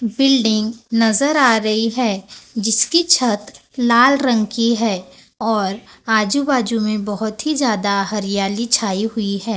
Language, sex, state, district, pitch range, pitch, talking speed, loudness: Hindi, female, Maharashtra, Gondia, 210-245 Hz, 225 Hz, 140 wpm, -17 LUFS